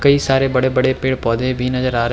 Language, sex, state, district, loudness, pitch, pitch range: Hindi, male, Uttarakhand, Tehri Garhwal, -17 LUFS, 130 Hz, 125-130 Hz